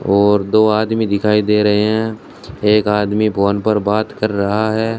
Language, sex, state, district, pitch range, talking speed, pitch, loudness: Hindi, male, Rajasthan, Bikaner, 105-110 Hz, 180 wpm, 105 Hz, -15 LUFS